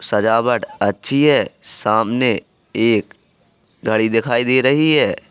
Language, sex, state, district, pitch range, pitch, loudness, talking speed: Hindi, male, Uttar Pradesh, Jalaun, 110-135 Hz, 120 Hz, -17 LUFS, 115 wpm